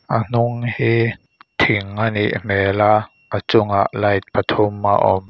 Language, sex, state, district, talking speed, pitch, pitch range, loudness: Mizo, male, Mizoram, Aizawl, 160 wpm, 105 Hz, 100-115 Hz, -18 LUFS